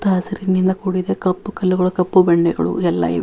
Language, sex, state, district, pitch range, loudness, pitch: Kannada, female, Karnataka, Dharwad, 180-190 Hz, -18 LUFS, 185 Hz